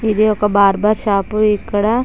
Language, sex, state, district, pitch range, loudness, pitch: Telugu, female, Andhra Pradesh, Chittoor, 205-215 Hz, -15 LUFS, 210 Hz